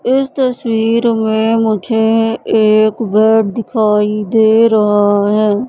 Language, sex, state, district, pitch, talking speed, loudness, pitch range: Hindi, female, Madhya Pradesh, Katni, 220 Hz, 105 wpm, -12 LUFS, 215-225 Hz